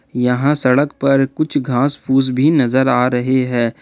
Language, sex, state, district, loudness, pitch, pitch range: Hindi, male, Jharkhand, Ranchi, -15 LUFS, 130 Hz, 125-140 Hz